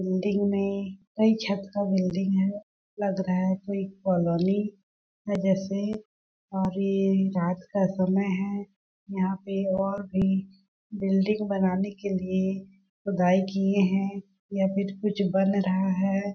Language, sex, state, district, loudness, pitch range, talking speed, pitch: Hindi, female, Chhattisgarh, Balrampur, -27 LUFS, 190-200 Hz, 130 wpm, 195 Hz